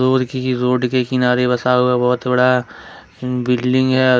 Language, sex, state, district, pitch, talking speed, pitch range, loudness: Hindi, male, Jharkhand, Ranchi, 125 Hz, 155 wpm, 125-130 Hz, -16 LUFS